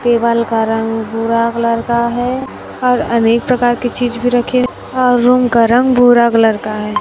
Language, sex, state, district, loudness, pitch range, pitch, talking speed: Hindi, female, Chhattisgarh, Raipur, -13 LUFS, 230-245 Hz, 235 Hz, 190 wpm